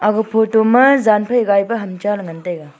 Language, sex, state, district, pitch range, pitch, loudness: Wancho, female, Arunachal Pradesh, Longding, 195-225 Hz, 210 Hz, -15 LUFS